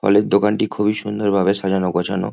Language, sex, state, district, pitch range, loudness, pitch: Bengali, male, West Bengal, Kolkata, 95-105 Hz, -18 LUFS, 100 Hz